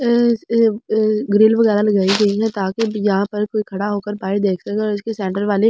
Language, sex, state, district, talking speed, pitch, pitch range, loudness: Hindi, female, Delhi, New Delhi, 170 wpm, 210 Hz, 200-220 Hz, -18 LUFS